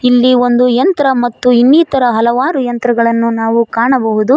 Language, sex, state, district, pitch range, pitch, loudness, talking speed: Kannada, female, Karnataka, Koppal, 230-260 Hz, 245 Hz, -11 LUFS, 125 wpm